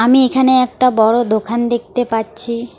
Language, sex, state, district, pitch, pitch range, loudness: Bengali, female, West Bengal, Alipurduar, 240 Hz, 225-255 Hz, -14 LUFS